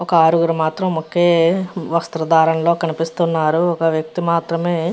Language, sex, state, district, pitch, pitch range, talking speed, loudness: Telugu, female, Andhra Pradesh, Visakhapatnam, 165 Hz, 160-170 Hz, 135 wpm, -17 LUFS